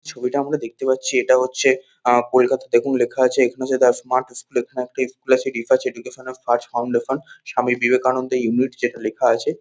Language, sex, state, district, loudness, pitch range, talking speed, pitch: Bengali, male, West Bengal, North 24 Parganas, -20 LUFS, 125-130 Hz, 175 wpm, 130 Hz